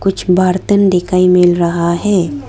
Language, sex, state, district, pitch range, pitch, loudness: Hindi, female, Arunachal Pradesh, Lower Dibang Valley, 170-190 Hz, 180 Hz, -12 LUFS